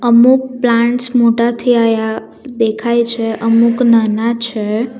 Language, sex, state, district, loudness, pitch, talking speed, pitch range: Gujarati, female, Gujarat, Valsad, -13 LUFS, 235 Hz, 110 wpm, 225-240 Hz